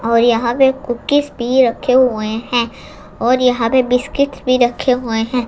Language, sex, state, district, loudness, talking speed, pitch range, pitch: Hindi, female, Gujarat, Gandhinagar, -15 LUFS, 175 wpm, 235-260 Hz, 250 Hz